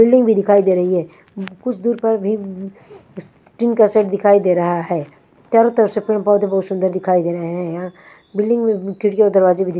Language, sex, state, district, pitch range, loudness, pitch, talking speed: Hindi, female, Punjab, Fazilka, 180-215 Hz, -16 LUFS, 200 Hz, 220 wpm